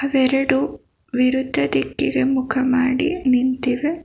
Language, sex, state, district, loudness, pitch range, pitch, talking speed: Kannada, female, Karnataka, Bangalore, -19 LUFS, 255-270 Hz, 260 Hz, 90 wpm